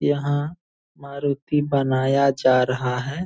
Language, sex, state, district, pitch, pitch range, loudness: Angika, male, Bihar, Purnia, 140 Hz, 130-145 Hz, -21 LUFS